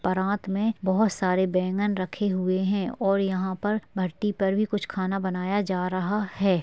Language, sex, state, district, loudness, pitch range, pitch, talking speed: Hindi, female, Maharashtra, Chandrapur, -26 LUFS, 185-205 Hz, 195 Hz, 170 wpm